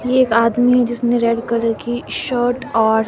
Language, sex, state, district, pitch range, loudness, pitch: Hindi, female, Himachal Pradesh, Shimla, 230-245 Hz, -17 LUFS, 240 Hz